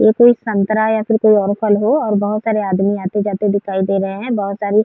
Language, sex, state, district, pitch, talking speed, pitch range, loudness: Hindi, female, Uttar Pradesh, Varanasi, 210 Hz, 270 wpm, 200-220 Hz, -16 LUFS